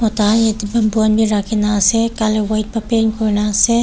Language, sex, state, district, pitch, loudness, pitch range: Nagamese, female, Nagaland, Kohima, 220 Hz, -15 LUFS, 210-225 Hz